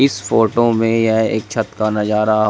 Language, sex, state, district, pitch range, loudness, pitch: Hindi, male, Uttar Pradesh, Shamli, 110-115 Hz, -16 LUFS, 110 Hz